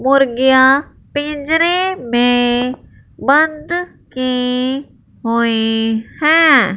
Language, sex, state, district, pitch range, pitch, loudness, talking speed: Hindi, male, Punjab, Fazilka, 245-305 Hz, 265 Hz, -15 LUFS, 60 wpm